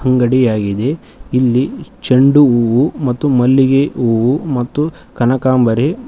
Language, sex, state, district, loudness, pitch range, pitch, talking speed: Kannada, male, Karnataka, Koppal, -13 LUFS, 120-140 Hz, 130 Hz, 100 wpm